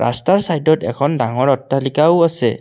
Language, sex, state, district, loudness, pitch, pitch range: Assamese, male, Assam, Kamrup Metropolitan, -16 LUFS, 150 Hz, 135-165 Hz